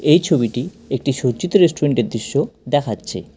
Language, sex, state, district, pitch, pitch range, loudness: Bengali, male, West Bengal, Cooch Behar, 140 Hz, 120-160 Hz, -19 LUFS